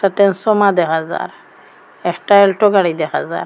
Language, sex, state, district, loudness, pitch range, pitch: Bengali, female, Assam, Hailakandi, -14 LUFS, 175-200 Hz, 195 Hz